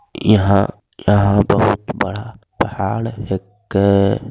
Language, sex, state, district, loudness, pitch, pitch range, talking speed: Angika, male, Bihar, Begusarai, -17 LUFS, 100 Hz, 100-105 Hz, 95 wpm